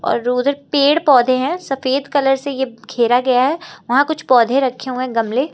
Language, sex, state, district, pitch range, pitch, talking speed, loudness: Hindi, female, Uttar Pradesh, Lucknow, 250-280 Hz, 265 Hz, 195 wpm, -16 LUFS